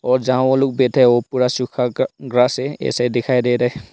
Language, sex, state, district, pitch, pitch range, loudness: Hindi, male, Arunachal Pradesh, Longding, 125 Hz, 125-130 Hz, -17 LUFS